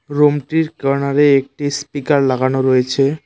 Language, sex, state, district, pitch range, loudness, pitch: Bengali, male, West Bengal, Cooch Behar, 135-145 Hz, -16 LUFS, 140 Hz